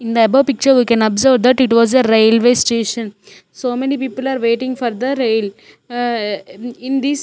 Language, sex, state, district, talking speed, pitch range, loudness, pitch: English, female, Chandigarh, Chandigarh, 205 wpm, 230-260 Hz, -15 LUFS, 245 Hz